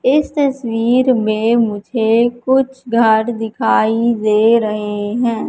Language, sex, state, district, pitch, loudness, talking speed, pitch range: Hindi, female, Madhya Pradesh, Katni, 230 Hz, -15 LUFS, 110 wpm, 220-245 Hz